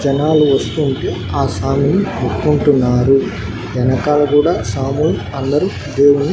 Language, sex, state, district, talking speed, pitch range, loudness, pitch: Telugu, male, Andhra Pradesh, Annamaya, 105 wpm, 125-145 Hz, -15 LUFS, 140 Hz